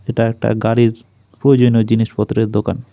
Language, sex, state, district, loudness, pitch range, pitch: Bengali, male, West Bengal, Alipurduar, -15 LUFS, 110-120 Hz, 115 Hz